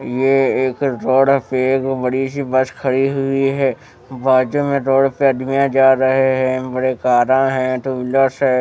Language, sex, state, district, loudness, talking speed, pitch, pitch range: Hindi, male, Bihar, West Champaran, -16 LUFS, 175 wpm, 130 Hz, 130-135 Hz